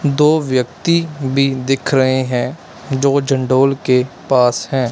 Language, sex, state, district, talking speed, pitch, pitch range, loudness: Hindi, male, Punjab, Kapurthala, 120 wpm, 135 Hz, 130-140 Hz, -16 LUFS